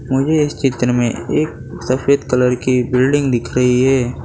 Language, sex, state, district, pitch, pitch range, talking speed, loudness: Hindi, male, Gujarat, Valsad, 130 Hz, 125-135 Hz, 170 wpm, -16 LUFS